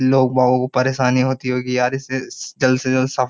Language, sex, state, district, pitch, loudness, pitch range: Hindi, male, Uttar Pradesh, Jyotiba Phule Nagar, 130 Hz, -18 LUFS, 125-130 Hz